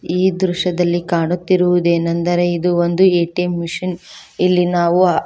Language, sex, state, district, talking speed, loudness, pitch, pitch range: Kannada, female, Karnataka, Koppal, 100 wpm, -16 LUFS, 175 Hz, 175-180 Hz